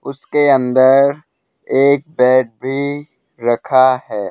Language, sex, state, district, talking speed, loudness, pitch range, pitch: Hindi, male, Uttar Pradesh, Hamirpur, 95 wpm, -14 LUFS, 125-140 Hz, 130 Hz